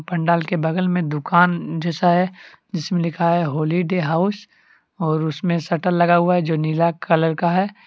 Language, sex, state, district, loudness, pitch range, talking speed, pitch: Hindi, male, Jharkhand, Deoghar, -19 LUFS, 165-180 Hz, 185 wpm, 170 Hz